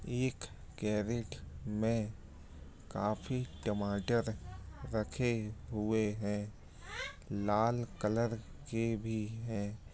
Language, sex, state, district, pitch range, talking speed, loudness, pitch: Hindi, male, Andhra Pradesh, Anantapur, 100-115 Hz, 85 wpm, -37 LUFS, 105 Hz